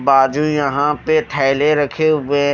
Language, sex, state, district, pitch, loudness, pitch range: Hindi, male, Haryana, Rohtak, 145 Hz, -16 LUFS, 140-150 Hz